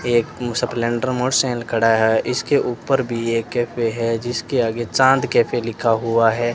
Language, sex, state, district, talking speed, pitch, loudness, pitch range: Hindi, male, Rajasthan, Bikaner, 145 wpm, 120 Hz, -19 LUFS, 115-125 Hz